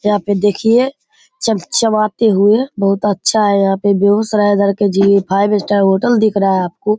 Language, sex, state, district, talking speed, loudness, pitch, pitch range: Hindi, male, Bihar, Begusarai, 190 wpm, -13 LUFS, 205 Hz, 200-220 Hz